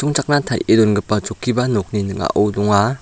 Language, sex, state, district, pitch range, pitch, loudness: Garo, male, Meghalaya, South Garo Hills, 105-125 Hz, 110 Hz, -17 LUFS